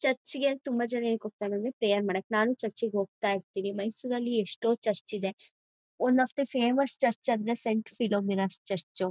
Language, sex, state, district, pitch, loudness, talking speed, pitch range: Kannada, female, Karnataka, Mysore, 220 Hz, -30 LUFS, 185 wpm, 200-245 Hz